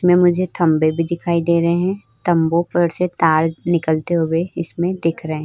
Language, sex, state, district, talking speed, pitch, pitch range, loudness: Hindi, female, Uttar Pradesh, Hamirpur, 200 wpm, 170 Hz, 165-175 Hz, -18 LUFS